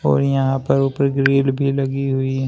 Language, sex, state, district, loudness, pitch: Hindi, male, Uttar Pradesh, Shamli, -18 LUFS, 135 Hz